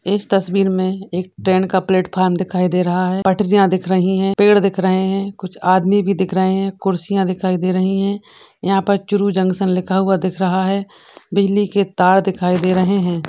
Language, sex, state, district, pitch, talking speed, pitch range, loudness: Hindi, female, Rajasthan, Churu, 190 Hz, 210 wpm, 185-195 Hz, -17 LUFS